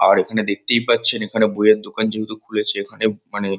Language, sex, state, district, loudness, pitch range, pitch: Bengali, male, West Bengal, Kolkata, -18 LUFS, 105-110 Hz, 110 Hz